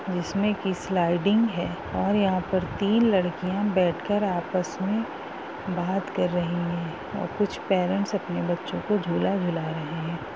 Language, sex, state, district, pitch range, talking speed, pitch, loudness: Hindi, female, Bihar, Gopalganj, 175-200 Hz, 155 wpm, 185 Hz, -26 LUFS